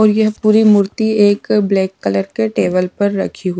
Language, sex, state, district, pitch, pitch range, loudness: Hindi, female, Punjab, Pathankot, 200 Hz, 185-215 Hz, -14 LUFS